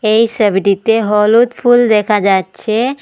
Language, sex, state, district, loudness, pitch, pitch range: Bengali, female, Assam, Hailakandi, -12 LUFS, 215 Hz, 210-235 Hz